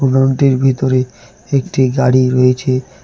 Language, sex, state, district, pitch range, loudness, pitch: Bengali, male, West Bengal, Alipurduar, 125-135 Hz, -14 LUFS, 130 Hz